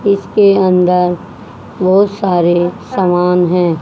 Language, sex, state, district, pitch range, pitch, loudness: Hindi, female, Haryana, Jhajjar, 175-195 Hz, 180 Hz, -12 LUFS